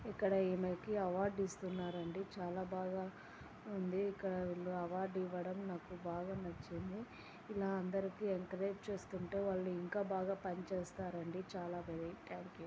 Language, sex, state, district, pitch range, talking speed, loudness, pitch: Telugu, female, Andhra Pradesh, Anantapur, 180-195 Hz, 130 wpm, -42 LUFS, 185 Hz